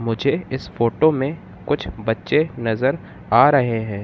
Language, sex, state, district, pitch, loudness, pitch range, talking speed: Hindi, male, Madhya Pradesh, Katni, 125 Hz, -20 LUFS, 110-145 Hz, 150 wpm